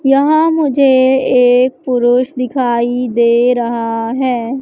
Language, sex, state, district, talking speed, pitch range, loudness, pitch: Hindi, female, Madhya Pradesh, Katni, 105 wpm, 240-265 Hz, -13 LUFS, 250 Hz